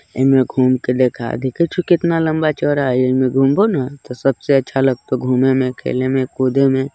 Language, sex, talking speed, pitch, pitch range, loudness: Bajjika, male, 205 wpm, 130 Hz, 130-135 Hz, -16 LUFS